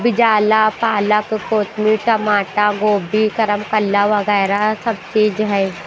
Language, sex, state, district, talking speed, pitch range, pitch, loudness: Hindi, female, Bihar, Patna, 100 wpm, 205-215 Hz, 210 Hz, -16 LUFS